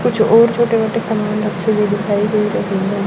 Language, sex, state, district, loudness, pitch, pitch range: Hindi, female, Haryana, Charkhi Dadri, -15 LUFS, 215 Hz, 205-225 Hz